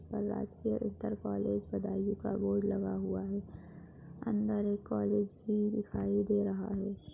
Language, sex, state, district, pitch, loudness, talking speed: Hindi, female, Uttar Pradesh, Budaun, 195 Hz, -35 LUFS, 145 wpm